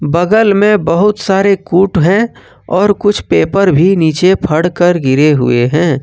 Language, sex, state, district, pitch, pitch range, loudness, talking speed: Hindi, male, Jharkhand, Ranchi, 180 Hz, 155-200 Hz, -11 LUFS, 160 wpm